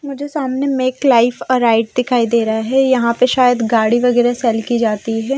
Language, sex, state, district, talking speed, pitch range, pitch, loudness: Hindi, female, Odisha, Nuapada, 200 wpm, 230-260 Hz, 245 Hz, -15 LUFS